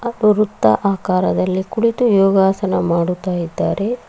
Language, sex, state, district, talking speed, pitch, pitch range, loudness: Kannada, female, Karnataka, Bangalore, 90 wpm, 195 Hz, 185-215 Hz, -16 LUFS